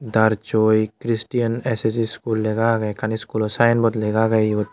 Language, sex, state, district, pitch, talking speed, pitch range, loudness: Chakma, male, Tripura, Unakoti, 110 Hz, 165 wpm, 110-115 Hz, -20 LUFS